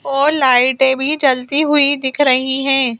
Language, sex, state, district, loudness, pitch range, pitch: Hindi, female, Madhya Pradesh, Bhopal, -14 LUFS, 260-285 Hz, 270 Hz